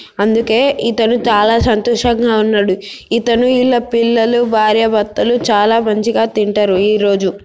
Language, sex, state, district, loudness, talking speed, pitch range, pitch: Telugu, female, Telangana, Nalgonda, -13 LUFS, 105 wpm, 210-235 Hz, 225 Hz